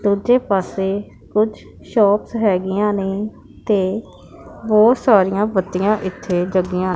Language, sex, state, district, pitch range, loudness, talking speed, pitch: Punjabi, female, Punjab, Pathankot, 190-215 Hz, -18 LUFS, 110 wpm, 200 Hz